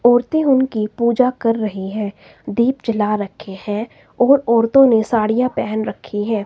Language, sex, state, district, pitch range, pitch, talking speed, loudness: Hindi, female, Himachal Pradesh, Shimla, 210-250 Hz, 230 Hz, 160 wpm, -17 LUFS